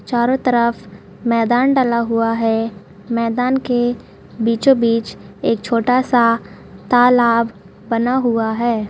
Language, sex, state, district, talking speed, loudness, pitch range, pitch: Hindi, female, Uttarakhand, Tehri Garhwal, 110 wpm, -17 LUFS, 225-245 Hz, 230 Hz